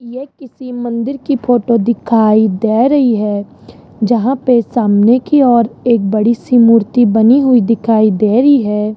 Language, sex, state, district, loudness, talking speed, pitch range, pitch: Hindi, male, Rajasthan, Jaipur, -12 LUFS, 160 wpm, 220-250 Hz, 235 Hz